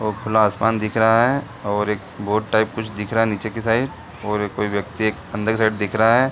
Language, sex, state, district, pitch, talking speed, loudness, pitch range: Hindi, male, Bihar, Gaya, 110 Hz, 255 wpm, -20 LUFS, 105-115 Hz